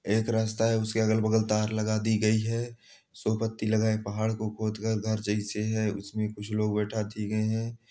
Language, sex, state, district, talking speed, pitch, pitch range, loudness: Hindi, male, Bihar, Supaul, 230 wpm, 110 Hz, 105-110 Hz, -29 LUFS